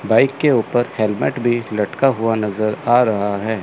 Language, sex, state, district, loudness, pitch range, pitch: Hindi, male, Chandigarh, Chandigarh, -18 LUFS, 105-120 Hz, 115 Hz